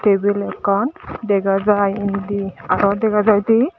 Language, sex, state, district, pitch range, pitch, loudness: Chakma, female, Tripura, Dhalai, 200-215 Hz, 200 Hz, -18 LUFS